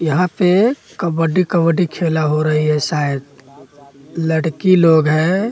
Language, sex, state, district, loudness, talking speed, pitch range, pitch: Hindi, male, Bihar, West Champaran, -16 LUFS, 130 wpm, 150-175 Hz, 160 Hz